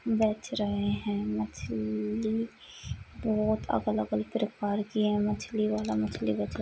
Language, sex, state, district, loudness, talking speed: Hindi, female, Maharashtra, Chandrapur, -31 LUFS, 125 wpm